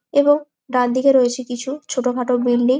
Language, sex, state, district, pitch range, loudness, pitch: Bengali, female, West Bengal, Jalpaiguri, 250-275 Hz, -18 LUFS, 255 Hz